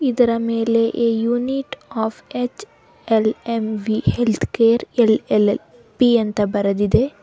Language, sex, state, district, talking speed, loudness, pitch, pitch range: Kannada, female, Karnataka, Bangalore, 90 wpm, -19 LUFS, 230 Hz, 220-240 Hz